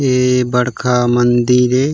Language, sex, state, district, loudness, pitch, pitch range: Chhattisgarhi, male, Chhattisgarh, Raigarh, -13 LUFS, 125 Hz, 120-125 Hz